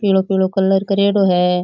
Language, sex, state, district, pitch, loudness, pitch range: Rajasthani, male, Rajasthan, Churu, 195 Hz, -15 LUFS, 190-195 Hz